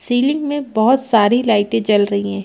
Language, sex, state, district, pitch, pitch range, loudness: Hindi, female, Chhattisgarh, Bilaspur, 225 Hz, 205-260 Hz, -16 LUFS